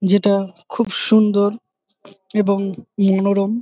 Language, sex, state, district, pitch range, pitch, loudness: Bengali, male, West Bengal, Jalpaiguri, 195-205 Hz, 200 Hz, -18 LUFS